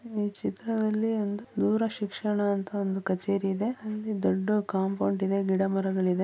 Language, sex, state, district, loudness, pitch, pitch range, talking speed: Kannada, female, Karnataka, Mysore, -29 LUFS, 205 Hz, 195-215 Hz, 145 wpm